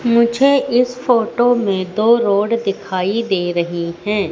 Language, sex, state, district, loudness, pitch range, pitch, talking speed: Hindi, female, Madhya Pradesh, Katni, -16 LUFS, 190-240 Hz, 215 Hz, 140 wpm